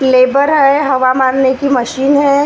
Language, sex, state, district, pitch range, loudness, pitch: Hindi, female, Maharashtra, Gondia, 260-280 Hz, -11 LUFS, 270 Hz